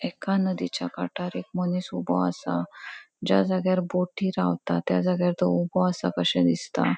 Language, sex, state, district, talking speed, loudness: Konkani, female, Goa, North and South Goa, 155 wpm, -26 LUFS